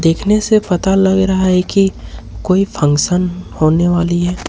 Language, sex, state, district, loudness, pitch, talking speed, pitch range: Hindi, male, Jharkhand, Ranchi, -14 LUFS, 180 Hz, 160 wpm, 175-190 Hz